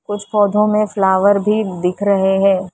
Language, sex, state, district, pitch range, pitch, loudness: Hindi, female, Maharashtra, Mumbai Suburban, 190-210 Hz, 200 Hz, -15 LUFS